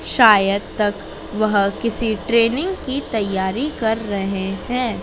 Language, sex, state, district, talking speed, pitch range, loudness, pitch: Hindi, female, Madhya Pradesh, Dhar, 120 wpm, 200-240 Hz, -19 LUFS, 220 Hz